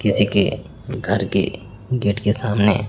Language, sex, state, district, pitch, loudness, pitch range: Hindi, male, Chhattisgarh, Raipur, 105 Hz, -18 LUFS, 100-105 Hz